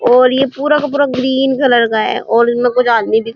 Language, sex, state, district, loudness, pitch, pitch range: Hindi, female, Uttar Pradesh, Muzaffarnagar, -13 LUFS, 250 Hz, 235-270 Hz